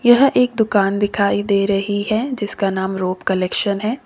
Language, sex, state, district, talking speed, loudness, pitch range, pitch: Hindi, female, Uttar Pradesh, Lalitpur, 175 wpm, -18 LUFS, 195-220 Hz, 205 Hz